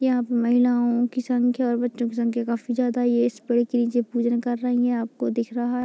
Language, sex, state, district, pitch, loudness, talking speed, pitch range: Hindi, female, Bihar, Muzaffarpur, 240 Hz, -23 LUFS, 205 wpm, 235-245 Hz